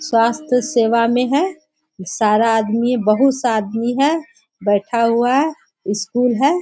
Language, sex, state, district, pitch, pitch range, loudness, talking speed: Hindi, female, Bihar, Bhagalpur, 240 Hz, 225-280 Hz, -17 LUFS, 135 wpm